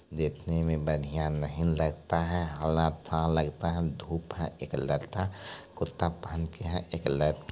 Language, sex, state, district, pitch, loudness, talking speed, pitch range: Maithili, male, Bihar, Supaul, 80 Hz, -31 LUFS, 160 wpm, 80-85 Hz